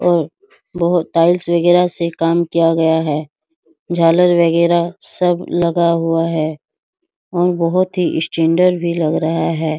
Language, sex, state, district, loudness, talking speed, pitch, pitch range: Hindi, female, Bihar, Araria, -15 LUFS, 140 wpm, 170 Hz, 165-175 Hz